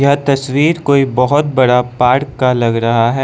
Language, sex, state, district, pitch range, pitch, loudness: Hindi, male, Arunachal Pradesh, Lower Dibang Valley, 125-140 Hz, 135 Hz, -13 LUFS